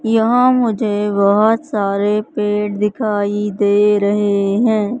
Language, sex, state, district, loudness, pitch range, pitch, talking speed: Hindi, female, Madhya Pradesh, Katni, -15 LUFS, 205-225 Hz, 210 Hz, 110 wpm